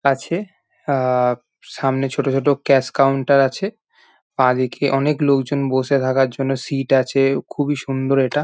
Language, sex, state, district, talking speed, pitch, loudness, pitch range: Bengali, male, West Bengal, Jhargram, 140 wpm, 135 Hz, -19 LUFS, 130-140 Hz